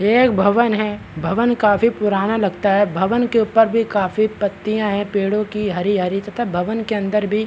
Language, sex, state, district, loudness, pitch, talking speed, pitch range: Hindi, male, Chhattisgarh, Balrampur, -18 LUFS, 210 Hz, 200 wpm, 200-225 Hz